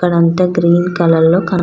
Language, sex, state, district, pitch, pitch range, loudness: Telugu, female, Andhra Pradesh, Krishna, 175 Hz, 170-180 Hz, -12 LUFS